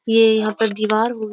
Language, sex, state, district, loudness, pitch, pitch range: Hindi, female, Uttar Pradesh, Jyotiba Phule Nagar, -17 LUFS, 220 Hz, 215-225 Hz